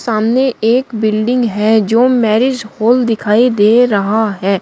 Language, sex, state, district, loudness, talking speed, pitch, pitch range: Hindi, female, Uttar Pradesh, Shamli, -12 LUFS, 145 wpm, 225 Hz, 215-245 Hz